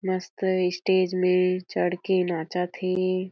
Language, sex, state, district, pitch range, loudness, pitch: Chhattisgarhi, female, Chhattisgarh, Jashpur, 180-185 Hz, -25 LUFS, 185 Hz